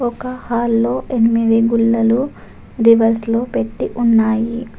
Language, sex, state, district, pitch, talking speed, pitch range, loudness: Telugu, female, Telangana, Adilabad, 230 Hz, 100 wpm, 230-240 Hz, -16 LUFS